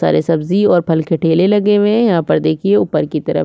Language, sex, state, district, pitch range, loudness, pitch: Hindi, female, Chhattisgarh, Kabirdham, 160-205 Hz, -14 LUFS, 170 Hz